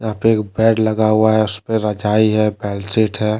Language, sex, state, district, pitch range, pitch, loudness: Hindi, male, Jharkhand, Deoghar, 105-110 Hz, 110 Hz, -16 LUFS